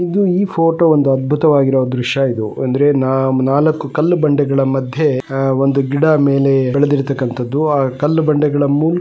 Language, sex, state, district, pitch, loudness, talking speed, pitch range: Kannada, male, Karnataka, Chamarajanagar, 140 Hz, -14 LUFS, 125 wpm, 135-150 Hz